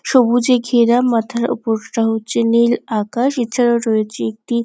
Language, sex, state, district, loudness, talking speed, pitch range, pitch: Bengali, female, West Bengal, Jhargram, -16 LUFS, 130 wpm, 225-245 Hz, 235 Hz